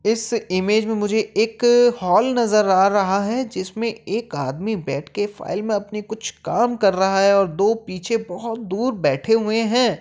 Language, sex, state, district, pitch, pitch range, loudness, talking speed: Hindi, male, Uttar Pradesh, Jyotiba Phule Nagar, 215 Hz, 195-225 Hz, -20 LUFS, 180 wpm